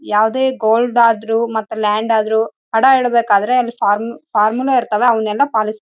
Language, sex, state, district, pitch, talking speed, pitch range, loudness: Kannada, female, Karnataka, Raichur, 225 Hz, 95 wpm, 215-240 Hz, -15 LUFS